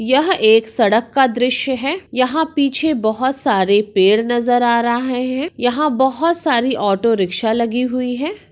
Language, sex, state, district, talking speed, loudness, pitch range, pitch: Hindi, female, Maharashtra, Sindhudurg, 160 wpm, -16 LUFS, 225-275 Hz, 250 Hz